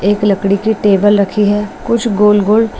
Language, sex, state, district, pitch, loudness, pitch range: Hindi, female, Bihar, West Champaran, 205 Hz, -12 LUFS, 200-210 Hz